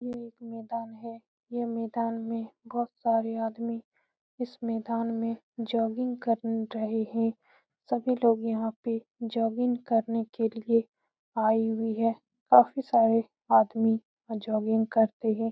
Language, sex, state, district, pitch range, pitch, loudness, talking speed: Hindi, female, Bihar, Saran, 225-235 Hz, 230 Hz, -28 LUFS, 135 wpm